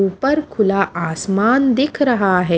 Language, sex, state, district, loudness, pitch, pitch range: Hindi, female, Haryana, Charkhi Dadri, -17 LUFS, 200 Hz, 185-265 Hz